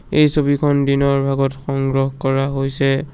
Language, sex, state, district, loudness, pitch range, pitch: Assamese, male, Assam, Sonitpur, -17 LUFS, 135-145 Hz, 135 Hz